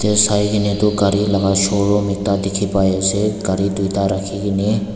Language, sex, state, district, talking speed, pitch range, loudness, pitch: Nagamese, male, Nagaland, Dimapur, 155 wpm, 100-105 Hz, -17 LUFS, 100 Hz